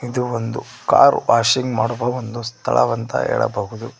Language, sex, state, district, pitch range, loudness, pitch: Kannada, male, Karnataka, Koppal, 115-125 Hz, -18 LUFS, 120 Hz